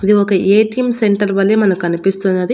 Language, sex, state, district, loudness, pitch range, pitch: Telugu, female, Andhra Pradesh, Annamaya, -14 LUFS, 195-210 Hz, 200 Hz